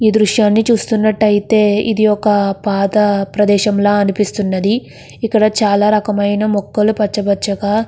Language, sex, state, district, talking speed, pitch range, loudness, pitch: Telugu, female, Andhra Pradesh, Krishna, 115 wpm, 205-215 Hz, -14 LUFS, 210 Hz